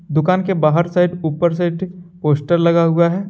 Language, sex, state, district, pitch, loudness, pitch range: Hindi, male, Jharkhand, Deoghar, 170 Hz, -16 LUFS, 165-180 Hz